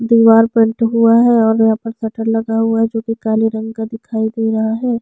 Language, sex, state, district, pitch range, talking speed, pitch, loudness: Hindi, female, Chhattisgarh, Sukma, 225-230 Hz, 240 wpm, 225 Hz, -14 LUFS